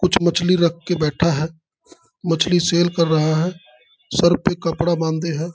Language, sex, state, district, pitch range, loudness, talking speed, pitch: Hindi, male, Jharkhand, Sahebganj, 160-175 Hz, -19 LUFS, 175 wpm, 170 Hz